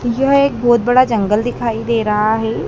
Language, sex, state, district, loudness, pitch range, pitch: Hindi, female, Madhya Pradesh, Dhar, -15 LUFS, 220-245 Hz, 235 Hz